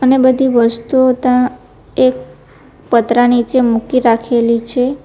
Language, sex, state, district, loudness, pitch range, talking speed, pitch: Gujarati, female, Gujarat, Valsad, -13 LUFS, 230-255 Hz, 120 wpm, 240 Hz